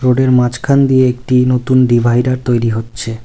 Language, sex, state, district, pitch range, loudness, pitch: Bengali, male, West Bengal, Cooch Behar, 120-130 Hz, -13 LUFS, 125 Hz